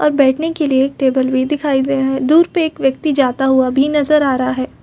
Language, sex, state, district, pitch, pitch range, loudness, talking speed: Hindi, female, Chhattisgarh, Bastar, 270 Hz, 265-300 Hz, -15 LUFS, 275 wpm